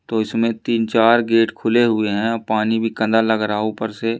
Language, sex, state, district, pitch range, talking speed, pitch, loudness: Hindi, male, Madhya Pradesh, Umaria, 110-115 Hz, 215 wpm, 115 Hz, -18 LUFS